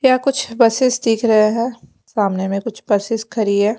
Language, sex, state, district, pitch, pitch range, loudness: Hindi, female, Haryana, Jhajjar, 225 Hz, 210-250 Hz, -17 LUFS